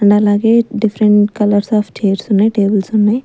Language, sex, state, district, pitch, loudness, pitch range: Telugu, female, Andhra Pradesh, Sri Satya Sai, 210 Hz, -13 LUFS, 205-220 Hz